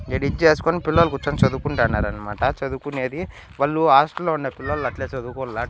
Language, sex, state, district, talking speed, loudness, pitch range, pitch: Telugu, male, Andhra Pradesh, Annamaya, 135 wpm, -21 LUFS, 130-155 Hz, 135 Hz